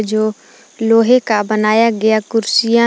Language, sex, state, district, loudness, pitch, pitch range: Hindi, female, Jharkhand, Palamu, -14 LUFS, 220 Hz, 215-230 Hz